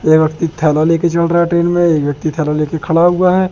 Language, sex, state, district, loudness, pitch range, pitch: Hindi, male, Madhya Pradesh, Katni, -13 LUFS, 155-170 Hz, 165 Hz